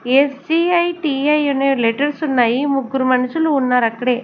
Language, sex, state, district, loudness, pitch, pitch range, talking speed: Telugu, female, Andhra Pradesh, Sri Satya Sai, -17 LUFS, 275 Hz, 250-300 Hz, 100 wpm